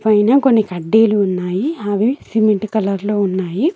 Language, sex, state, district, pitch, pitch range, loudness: Telugu, female, Telangana, Mahabubabad, 210 Hz, 195-225 Hz, -16 LUFS